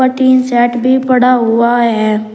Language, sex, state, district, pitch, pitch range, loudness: Hindi, male, Uttar Pradesh, Shamli, 240 Hz, 230-255 Hz, -11 LUFS